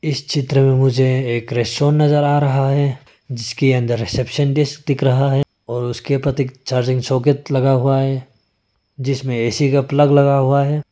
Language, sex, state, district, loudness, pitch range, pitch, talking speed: Hindi, male, Arunachal Pradesh, Lower Dibang Valley, -17 LUFS, 125-140 Hz, 135 Hz, 165 wpm